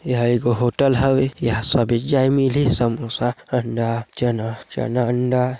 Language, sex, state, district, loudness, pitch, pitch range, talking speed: Chhattisgarhi, male, Chhattisgarh, Sarguja, -20 LUFS, 120 Hz, 120-130 Hz, 140 wpm